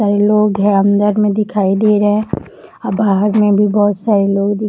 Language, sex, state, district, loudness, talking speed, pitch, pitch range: Hindi, female, Bihar, Darbhanga, -13 LUFS, 215 wpm, 205 Hz, 200-210 Hz